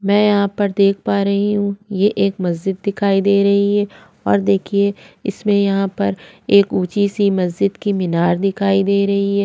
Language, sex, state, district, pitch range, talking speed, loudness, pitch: Hindi, female, Maharashtra, Aurangabad, 195-200 Hz, 185 wpm, -17 LUFS, 200 Hz